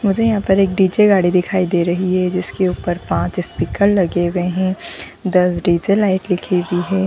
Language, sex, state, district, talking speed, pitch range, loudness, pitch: Hindi, female, Jharkhand, Jamtara, 195 wpm, 180-195 Hz, -17 LUFS, 185 Hz